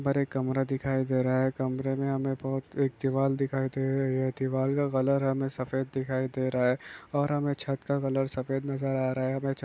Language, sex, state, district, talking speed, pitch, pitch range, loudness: Hindi, male, Maharashtra, Solapur, 230 wpm, 135 Hz, 130-135 Hz, -29 LUFS